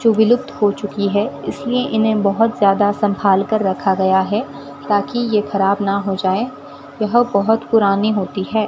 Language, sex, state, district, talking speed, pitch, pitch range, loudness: Hindi, female, Rajasthan, Bikaner, 170 wpm, 205 Hz, 195-220 Hz, -17 LUFS